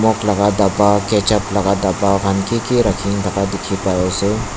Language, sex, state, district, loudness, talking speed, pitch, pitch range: Nagamese, male, Nagaland, Dimapur, -16 LUFS, 170 wpm, 100 Hz, 100-105 Hz